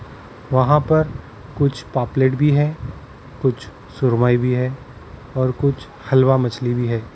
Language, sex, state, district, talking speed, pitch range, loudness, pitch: Hindi, male, Maharashtra, Mumbai Suburban, 135 wpm, 120-135 Hz, -19 LUFS, 130 Hz